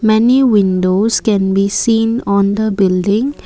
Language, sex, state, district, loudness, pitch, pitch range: English, female, Assam, Kamrup Metropolitan, -13 LUFS, 210 Hz, 195-225 Hz